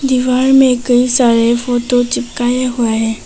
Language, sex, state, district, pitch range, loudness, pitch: Hindi, female, Arunachal Pradesh, Papum Pare, 240-255 Hz, -13 LUFS, 245 Hz